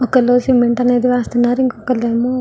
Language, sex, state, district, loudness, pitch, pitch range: Telugu, female, Andhra Pradesh, Visakhapatnam, -15 LUFS, 245 Hz, 240-250 Hz